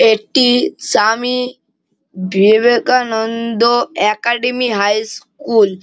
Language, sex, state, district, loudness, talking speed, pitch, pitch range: Bengali, male, West Bengal, Malda, -14 LUFS, 70 wpm, 235 Hz, 215-250 Hz